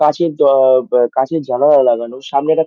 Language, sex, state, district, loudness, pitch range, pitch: Bengali, male, West Bengal, Dakshin Dinajpur, -13 LUFS, 125-160 Hz, 135 Hz